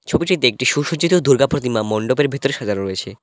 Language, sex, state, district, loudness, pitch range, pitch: Bengali, male, West Bengal, Cooch Behar, -17 LUFS, 110-145 Hz, 135 Hz